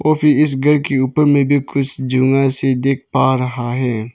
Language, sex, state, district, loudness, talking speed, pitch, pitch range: Hindi, male, Arunachal Pradesh, Papum Pare, -15 LUFS, 190 wpm, 135 Hz, 130-145 Hz